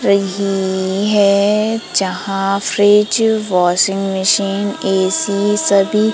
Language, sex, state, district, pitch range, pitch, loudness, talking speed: Hindi, female, Madhya Pradesh, Umaria, 195-210 Hz, 200 Hz, -15 LUFS, 80 wpm